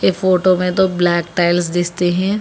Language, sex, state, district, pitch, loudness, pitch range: Hindi, female, Telangana, Hyderabad, 180 Hz, -16 LUFS, 175-185 Hz